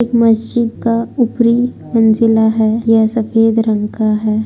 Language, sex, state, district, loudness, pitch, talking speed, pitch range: Hindi, female, Bihar, Darbhanga, -13 LUFS, 225 Hz, 150 wpm, 220-235 Hz